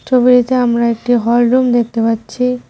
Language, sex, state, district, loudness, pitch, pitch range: Bengali, female, West Bengal, Cooch Behar, -13 LUFS, 245 Hz, 235-250 Hz